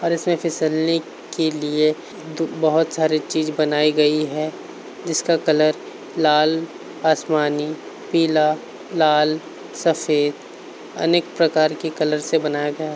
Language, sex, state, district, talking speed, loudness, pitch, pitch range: Hindi, male, Uttar Pradesh, Varanasi, 115 wpm, -20 LUFS, 155 Hz, 150-165 Hz